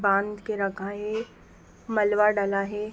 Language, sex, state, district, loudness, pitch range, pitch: Hindi, female, Uttar Pradesh, Etah, -26 LUFS, 200-210 Hz, 205 Hz